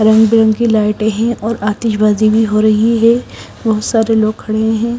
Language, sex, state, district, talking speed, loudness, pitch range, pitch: Hindi, female, Odisha, Sambalpur, 180 wpm, -13 LUFS, 215-225 Hz, 220 Hz